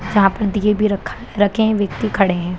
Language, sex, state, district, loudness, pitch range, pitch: Hindi, female, Bihar, Kishanganj, -17 LUFS, 195-210 Hz, 205 Hz